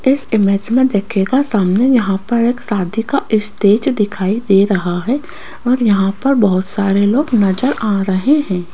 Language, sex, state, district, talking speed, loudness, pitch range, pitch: Hindi, female, Rajasthan, Jaipur, 170 wpm, -15 LUFS, 195-250 Hz, 210 Hz